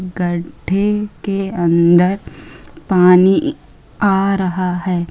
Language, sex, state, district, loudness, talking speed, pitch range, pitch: Hindi, female, Uttar Pradesh, Hamirpur, -15 LUFS, 80 wpm, 180-195 Hz, 185 Hz